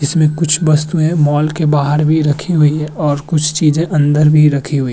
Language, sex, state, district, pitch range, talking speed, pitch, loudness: Hindi, male, Uttar Pradesh, Muzaffarnagar, 145-155 Hz, 220 wpm, 150 Hz, -13 LUFS